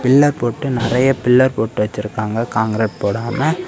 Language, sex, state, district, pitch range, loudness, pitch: Tamil, male, Tamil Nadu, Kanyakumari, 110-130 Hz, -17 LUFS, 120 Hz